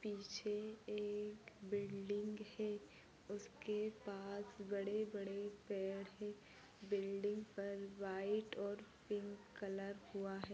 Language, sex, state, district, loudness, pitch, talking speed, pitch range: Hindi, female, Maharashtra, Solapur, -46 LUFS, 205 Hz, 100 wpm, 200-210 Hz